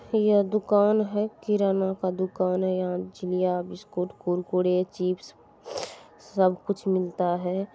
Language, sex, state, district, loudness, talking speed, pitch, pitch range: Maithili, female, Bihar, Supaul, -26 LUFS, 125 wpm, 185 Hz, 180-205 Hz